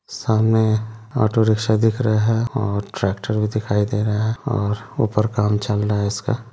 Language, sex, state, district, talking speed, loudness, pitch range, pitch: Hindi, male, Bihar, Madhepura, 185 wpm, -20 LUFS, 105-110 Hz, 110 Hz